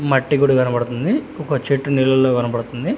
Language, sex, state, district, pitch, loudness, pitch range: Telugu, male, Telangana, Hyderabad, 135 Hz, -18 LUFS, 125-145 Hz